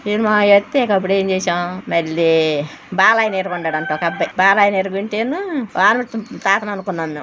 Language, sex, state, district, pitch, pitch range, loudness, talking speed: Telugu, female, Andhra Pradesh, Guntur, 195 Hz, 175-210 Hz, -17 LUFS, 90 wpm